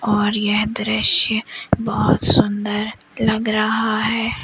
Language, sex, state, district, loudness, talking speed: Hindi, female, Madhya Pradesh, Umaria, -18 LUFS, 110 wpm